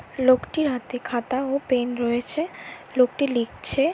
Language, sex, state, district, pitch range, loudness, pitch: Bengali, female, West Bengal, Jhargram, 245-280 Hz, -24 LUFS, 255 Hz